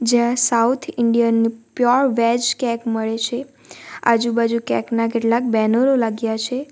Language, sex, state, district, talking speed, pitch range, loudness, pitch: Gujarati, female, Gujarat, Valsad, 135 wpm, 230-245 Hz, -19 LUFS, 235 Hz